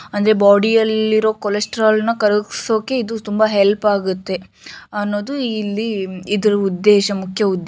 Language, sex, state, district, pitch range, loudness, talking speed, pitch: Kannada, female, Karnataka, Shimoga, 200-220 Hz, -17 LUFS, 135 wpm, 210 Hz